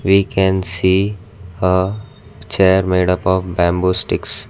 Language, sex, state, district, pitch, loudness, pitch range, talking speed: English, male, Karnataka, Bangalore, 95 Hz, -16 LUFS, 90-100 Hz, 135 wpm